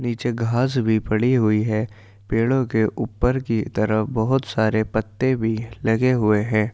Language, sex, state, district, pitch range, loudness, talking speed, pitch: Hindi, male, Uttar Pradesh, Jyotiba Phule Nagar, 110-120 Hz, -21 LUFS, 160 wpm, 110 Hz